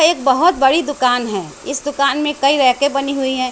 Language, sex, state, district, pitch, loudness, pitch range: Hindi, female, Bihar, West Champaran, 275 Hz, -16 LUFS, 260-290 Hz